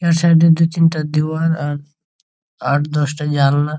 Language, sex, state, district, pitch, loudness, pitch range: Bengali, male, West Bengal, Jhargram, 155 Hz, -16 LUFS, 145-165 Hz